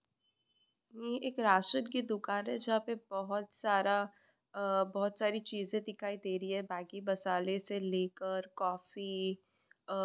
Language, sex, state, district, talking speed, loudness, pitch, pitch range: Hindi, female, West Bengal, Purulia, 145 wpm, -36 LUFS, 200 Hz, 190-210 Hz